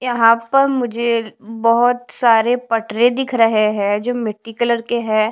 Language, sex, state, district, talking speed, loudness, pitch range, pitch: Hindi, female, Delhi, New Delhi, 145 wpm, -16 LUFS, 225-245 Hz, 230 Hz